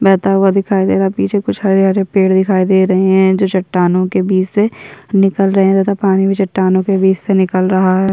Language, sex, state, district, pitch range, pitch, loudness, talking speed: Hindi, female, Chhattisgarh, Sukma, 185-195 Hz, 190 Hz, -13 LUFS, 235 wpm